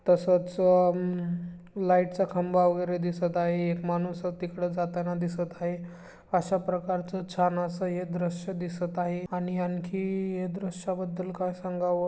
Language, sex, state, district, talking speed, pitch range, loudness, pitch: Marathi, female, Maharashtra, Chandrapur, 140 wpm, 175-185 Hz, -29 LUFS, 180 Hz